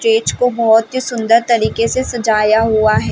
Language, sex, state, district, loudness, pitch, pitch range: Hindi, female, Chhattisgarh, Balrampur, -14 LUFS, 230 Hz, 220-250 Hz